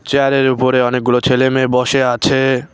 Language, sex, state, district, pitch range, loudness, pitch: Bengali, male, West Bengal, Cooch Behar, 125-135 Hz, -14 LUFS, 130 Hz